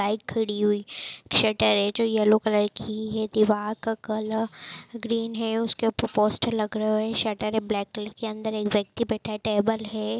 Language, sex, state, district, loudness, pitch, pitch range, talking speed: Hindi, female, Maharashtra, Dhule, -26 LUFS, 215 Hz, 210-225 Hz, 175 wpm